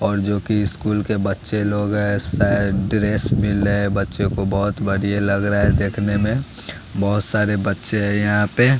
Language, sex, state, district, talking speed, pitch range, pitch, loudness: Hindi, male, Bihar, West Champaran, 175 wpm, 100-105 Hz, 100 Hz, -19 LUFS